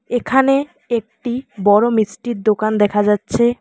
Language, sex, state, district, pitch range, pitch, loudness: Bengali, female, West Bengal, Alipurduar, 210-245 Hz, 235 Hz, -17 LUFS